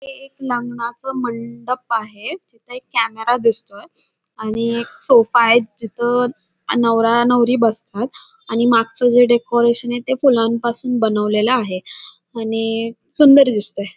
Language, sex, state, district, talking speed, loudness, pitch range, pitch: Marathi, female, Maharashtra, Dhule, 125 wpm, -17 LUFS, 225-245 Hz, 235 Hz